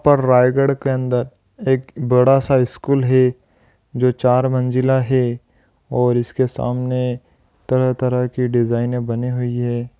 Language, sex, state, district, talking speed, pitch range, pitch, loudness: Hindi, male, Chhattisgarh, Raigarh, 125 wpm, 120-130 Hz, 125 Hz, -18 LUFS